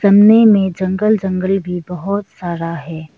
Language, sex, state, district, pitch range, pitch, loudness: Hindi, female, Arunachal Pradesh, Lower Dibang Valley, 175-200 Hz, 190 Hz, -15 LUFS